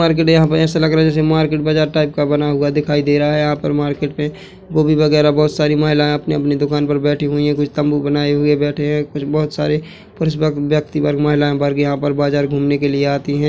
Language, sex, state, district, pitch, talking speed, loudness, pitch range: Hindi, male, Chhattisgarh, Bilaspur, 150 Hz, 255 wpm, -16 LUFS, 145-155 Hz